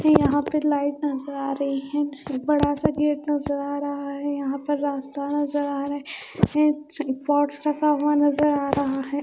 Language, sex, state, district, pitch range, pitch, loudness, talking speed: Hindi, female, Bihar, Katihar, 280-295 Hz, 290 Hz, -24 LUFS, 180 wpm